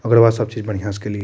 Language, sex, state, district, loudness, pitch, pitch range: Maithili, male, Bihar, Madhepura, -18 LUFS, 110 Hz, 105-115 Hz